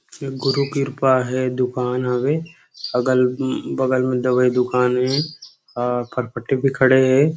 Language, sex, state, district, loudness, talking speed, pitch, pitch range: Chhattisgarhi, male, Chhattisgarh, Rajnandgaon, -20 LUFS, 115 wpm, 130 Hz, 125-135 Hz